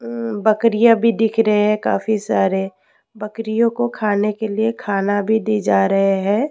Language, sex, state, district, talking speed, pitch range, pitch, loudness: Hindi, female, Rajasthan, Jaipur, 175 wpm, 205-225 Hz, 215 Hz, -17 LUFS